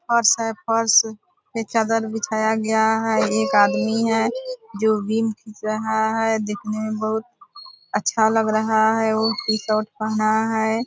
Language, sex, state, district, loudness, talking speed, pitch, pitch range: Hindi, female, Bihar, Purnia, -20 LUFS, 155 wpm, 220 Hz, 215-225 Hz